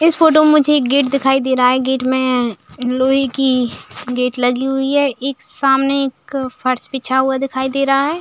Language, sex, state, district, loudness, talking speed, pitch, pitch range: Hindi, female, Uttar Pradesh, Budaun, -15 LUFS, 205 wpm, 270 Hz, 255-275 Hz